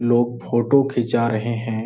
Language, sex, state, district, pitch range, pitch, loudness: Hindi, male, Bihar, Jahanabad, 115-120 Hz, 120 Hz, -20 LUFS